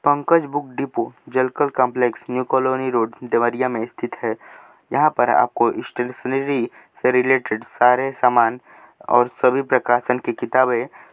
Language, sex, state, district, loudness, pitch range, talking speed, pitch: Hindi, male, Uttar Pradesh, Deoria, -20 LUFS, 120-130 Hz, 135 wpm, 125 Hz